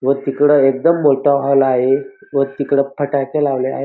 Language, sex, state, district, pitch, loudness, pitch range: Marathi, male, Maharashtra, Dhule, 140 Hz, -15 LUFS, 135-145 Hz